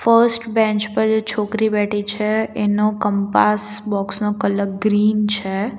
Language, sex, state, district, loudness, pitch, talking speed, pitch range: Gujarati, female, Gujarat, Valsad, -18 LUFS, 210 Hz, 145 wpm, 205-220 Hz